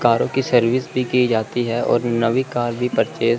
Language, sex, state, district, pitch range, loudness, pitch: Hindi, male, Chandigarh, Chandigarh, 115-125 Hz, -19 LUFS, 120 Hz